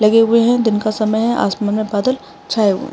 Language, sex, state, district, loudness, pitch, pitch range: Hindi, male, Uttarakhand, Tehri Garhwal, -16 LUFS, 220 Hz, 215-230 Hz